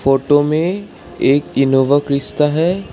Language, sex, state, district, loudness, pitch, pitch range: Hindi, male, Assam, Sonitpur, -15 LUFS, 145 Hz, 135-160 Hz